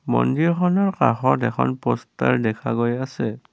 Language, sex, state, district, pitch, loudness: Assamese, male, Assam, Kamrup Metropolitan, 120 Hz, -21 LUFS